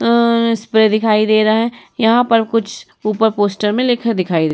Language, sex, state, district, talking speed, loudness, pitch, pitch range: Hindi, female, Uttar Pradesh, Muzaffarnagar, 210 wpm, -15 LUFS, 220 Hz, 215-230 Hz